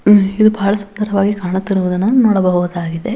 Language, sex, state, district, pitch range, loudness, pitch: Kannada, female, Karnataka, Bellary, 185-210 Hz, -15 LUFS, 200 Hz